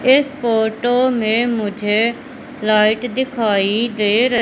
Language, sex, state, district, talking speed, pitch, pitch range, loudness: Hindi, female, Madhya Pradesh, Katni, 110 wpm, 230 Hz, 215-250 Hz, -17 LUFS